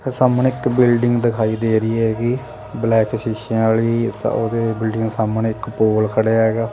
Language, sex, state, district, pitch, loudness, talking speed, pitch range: Punjabi, male, Punjab, Kapurthala, 115 Hz, -18 LUFS, 150 wpm, 110-120 Hz